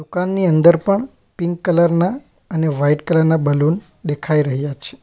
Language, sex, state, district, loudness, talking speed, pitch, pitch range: Gujarati, male, Gujarat, Valsad, -17 LUFS, 165 wpm, 165 Hz, 150-180 Hz